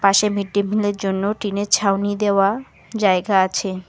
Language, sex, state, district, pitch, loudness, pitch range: Bengali, female, West Bengal, Alipurduar, 200 Hz, -19 LUFS, 195-205 Hz